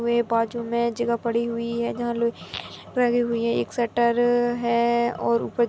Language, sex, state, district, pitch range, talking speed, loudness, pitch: Hindi, female, Chhattisgarh, Rajnandgaon, 235-240 Hz, 180 wpm, -24 LUFS, 235 Hz